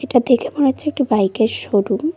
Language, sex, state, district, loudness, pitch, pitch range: Bengali, female, West Bengal, Cooch Behar, -17 LUFS, 245 Hz, 215-280 Hz